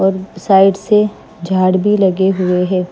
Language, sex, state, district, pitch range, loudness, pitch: Hindi, female, Maharashtra, Mumbai Suburban, 185-195 Hz, -13 LUFS, 190 Hz